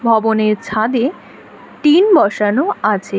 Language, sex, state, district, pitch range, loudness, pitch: Bengali, female, West Bengal, Alipurduar, 215-295 Hz, -14 LUFS, 225 Hz